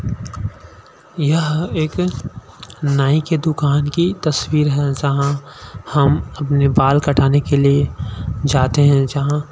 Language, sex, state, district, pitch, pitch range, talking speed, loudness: Hindi, male, Chhattisgarh, Sukma, 145 Hz, 140-150 Hz, 115 wpm, -17 LUFS